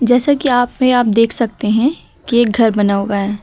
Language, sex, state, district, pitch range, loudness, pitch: Hindi, female, Uttar Pradesh, Lucknow, 215-250 Hz, -14 LUFS, 235 Hz